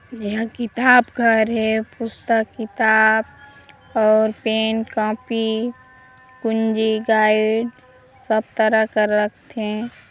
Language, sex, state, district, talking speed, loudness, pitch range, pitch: Hindi, female, Chhattisgarh, Sarguja, 95 wpm, -19 LUFS, 220-230 Hz, 220 Hz